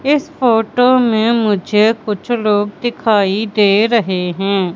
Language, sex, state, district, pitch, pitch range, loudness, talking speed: Hindi, female, Madhya Pradesh, Katni, 220 Hz, 205-240 Hz, -14 LUFS, 125 wpm